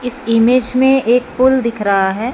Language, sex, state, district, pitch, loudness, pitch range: Hindi, female, Punjab, Fazilka, 245 Hz, -13 LUFS, 230-255 Hz